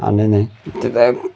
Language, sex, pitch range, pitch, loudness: Marathi, male, 105-125 Hz, 115 Hz, -17 LUFS